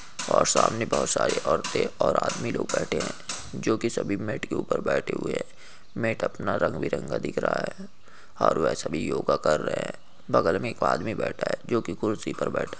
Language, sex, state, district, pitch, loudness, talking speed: Hindi, male, Andhra Pradesh, Anantapur, 195 Hz, -27 LUFS, 210 wpm